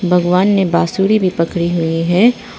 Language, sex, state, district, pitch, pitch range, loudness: Hindi, female, Arunachal Pradesh, Papum Pare, 180 Hz, 170-195 Hz, -14 LUFS